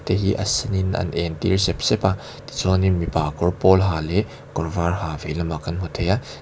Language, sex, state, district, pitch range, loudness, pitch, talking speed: Mizo, male, Mizoram, Aizawl, 85-95 Hz, -22 LUFS, 90 Hz, 245 wpm